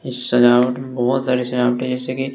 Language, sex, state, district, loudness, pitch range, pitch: Hindi, male, Bihar, West Champaran, -18 LUFS, 125-130 Hz, 125 Hz